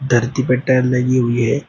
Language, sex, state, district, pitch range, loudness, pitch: Hindi, male, Uttar Pradesh, Shamli, 120-130 Hz, -16 LUFS, 125 Hz